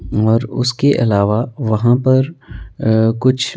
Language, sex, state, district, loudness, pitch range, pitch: Hindi, male, Himachal Pradesh, Shimla, -15 LUFS, 110-130 Hz, 120 Hz